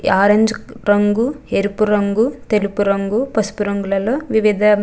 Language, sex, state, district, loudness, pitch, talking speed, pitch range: Telugu, female, Andhra Pradesh, Chittoor, -17 LUFS, 210 Hz, 125 wpm, 205-230 Hz